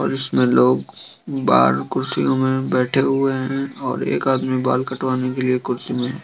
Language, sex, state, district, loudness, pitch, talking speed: Hindi, male, Bihar, East Champaran, -19 LUFS, 130 Hz, 180 wpm